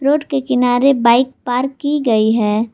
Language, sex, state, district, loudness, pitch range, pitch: Hindi, female, Jharkhand, Garhwa, -15 LUFS, 235-275 Hz, 250 Hz